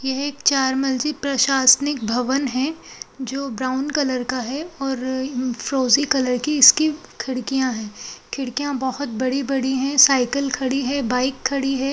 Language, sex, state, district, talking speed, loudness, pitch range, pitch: Hindi, female, Uttar Pradesh, Jalaun, 150 wpm, -20 LUFS, 255-280 Hz, 265 Hz